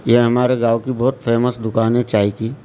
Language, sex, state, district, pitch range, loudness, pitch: Hindi, male, Maharashtra, Gondia, 115-125 Hz, -17 LUFS, 120 Hz